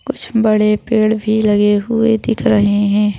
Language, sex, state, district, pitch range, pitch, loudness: Hindi, female, Madhya Pradesh, Bhopal, 205-225 Hz, 215 Hz, -14 LUFS